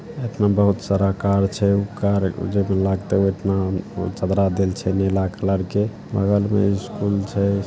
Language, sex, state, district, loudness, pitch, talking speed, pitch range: Maithili, male, Bihar, Saharsa, -21 LUFS, 100 Hz, 150 wpm, 95-100 Hz